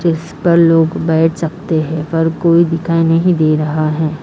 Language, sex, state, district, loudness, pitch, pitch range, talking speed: Hindi, female, Maharashtra, Mumbai Suburban, -13 LUFS, 165 Hz, 160-170 Hz, 185 wpm